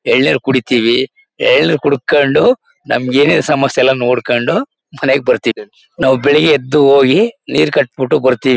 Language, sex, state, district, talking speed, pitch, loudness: Kannada, male, Karnataka, Mysore, 125 wpm, 140 Hz, -12 LUFS